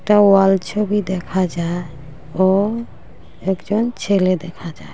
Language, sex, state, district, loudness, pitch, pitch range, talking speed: Bengali, female, Assam, Hailakandi, -18 LUFS, 190 Hz, 175-205 Hz, 110 wpm